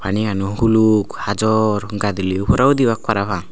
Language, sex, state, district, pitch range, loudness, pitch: Chakma, male, Tripura, Unakoti, 100-110 Hz, -17 LUFS, 105 Hz